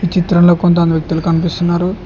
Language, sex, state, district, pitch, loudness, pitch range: Telugu, male, Telangana, Hyderabad, 175 Hz, -13 LUFS, 170-180 Hz